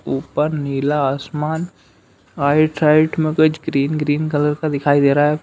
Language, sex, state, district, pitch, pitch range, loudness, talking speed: Hindi, male, Uttar Pradesh, Hamirpur, 145 Hz, 140-155 Hz, -17 LUFS, 155 wpm